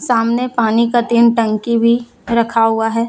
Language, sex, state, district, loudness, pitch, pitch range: Hindi, female, Jharkhand, Deoghar, -14 LUFS, 235 Hz, 230-235 Hz